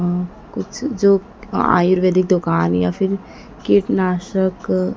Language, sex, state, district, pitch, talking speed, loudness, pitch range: Hindi, female, Madhya Pradesh, Dhar, 185 Hz, 85 wpm, -18 LUFS, 175-195 Hz